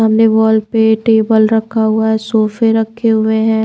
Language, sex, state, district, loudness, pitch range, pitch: Hindi, female, Maharashtra, Washim, -12 LUFS, 220-225 Hz, 220 Hz